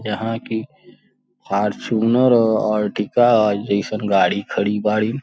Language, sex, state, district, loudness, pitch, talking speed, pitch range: Bhojpuri, male, Uttar Pradesh, Gorakhpur, -18 LUFS, 110 Hz, 115 wpm, 105-115 Hz